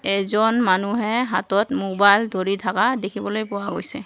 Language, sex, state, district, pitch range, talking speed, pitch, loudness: Assamese, female, Assam, Kamrup Metropolitan, 195-220 Hz, 135 wpm, 205 Hz, -20 LUFS